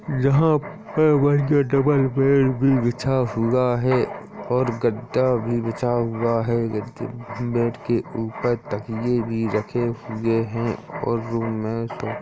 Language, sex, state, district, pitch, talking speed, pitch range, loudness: Hindi, female, Uttar Pradesh, Jalaun, 120 Hz, 130 wpm, 115-130 Hz, -22 LUFS